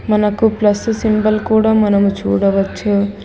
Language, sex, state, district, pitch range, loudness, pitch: Telugu, female, Telangana, Hyderabad, 200-220 Hz, -14 LUFS, 210 Hz